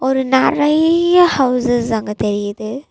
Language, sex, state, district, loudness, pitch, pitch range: Tamil, female, Tamil Nadu, Nilgiris, -15 LUFS, 260 Hz, 225-295 Hz